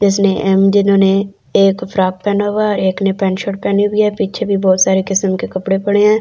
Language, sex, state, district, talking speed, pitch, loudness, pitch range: Hindi, female, Delhi, New Delhi, 230 wpm, 195 Hz, -14 LUFS, 190-205 Hz